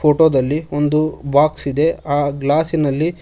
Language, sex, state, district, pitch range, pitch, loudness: Kannada, male, Karnataka, Koppal, 145-155 Hz, 150 Hz, -17 LUFS